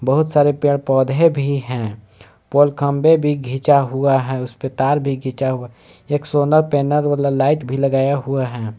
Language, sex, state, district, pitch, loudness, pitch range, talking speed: Hindi, male, Jharkhand, Palamu, 140 Hz, -17 LUFS, 130-145 Hz, 185 wpm